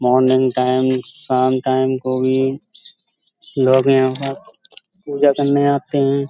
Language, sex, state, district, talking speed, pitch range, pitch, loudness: Hindi, male, Uttar Pradesh, Hamirpur, 125 wpm, 130-145 Hz, 135 Hz, -17 LUFS